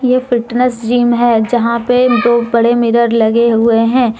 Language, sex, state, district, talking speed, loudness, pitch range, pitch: Hindi, female, Jharkhand, Deoghar, 170 wpm, -12 LUFS, 230-245 Hz, 235 Hz